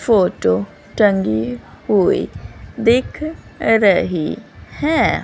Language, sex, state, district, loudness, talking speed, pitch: Hindi, female, Haryana, Rohtak, -17 LUFS, 70 wpm, 190 Hz